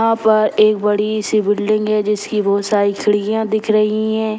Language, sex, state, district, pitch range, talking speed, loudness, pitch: Hindi, female, Bihar, Saran, 210-215 Hz, 190 wpm, -16 LUFS, 215 Hz